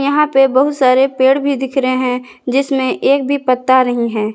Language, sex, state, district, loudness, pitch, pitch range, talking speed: Hindi, female, Jharkhand, Garhwa, -14 LUFS, 265 Hz, 255-275 Hz, 205 wpm